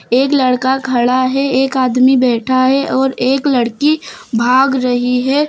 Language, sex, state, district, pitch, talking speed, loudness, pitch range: Hindi, female, Uttar Pradesh, Lucknow, 260 Hz, 155 wpm, -13 LUFS, 250-270 Hz